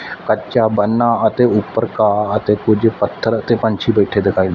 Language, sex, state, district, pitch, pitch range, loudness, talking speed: Punjabi, male, Punjab, Fazilka, 110 Hz, 105-115 Hz, -16 LUFS, 160 wpm